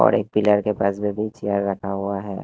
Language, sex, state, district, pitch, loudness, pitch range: Hindi, male, Haryana, Jhajjar, 100 Hz, -22 LUFS, 100-105 Hz